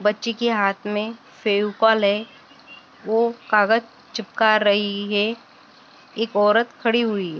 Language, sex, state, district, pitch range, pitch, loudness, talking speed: Hindi, female, Maharashtra, Sindhudurg, 205-230 Hz, 215 Hz, -20 LUFS, 130 wpm